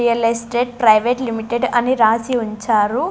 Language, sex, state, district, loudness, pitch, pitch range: Telugu, female, Andhra Pradesh, Sri Satya Sai, -17 LUFS, 235 Hz, 220-245 Hz